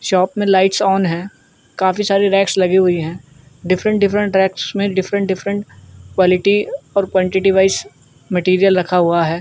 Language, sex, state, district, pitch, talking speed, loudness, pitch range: Hindi, male, Uttar Pradesh, Jyotiba Phule Nagar, 190 Hz, 165 wpm, -16 LUFS, 180-195 Hz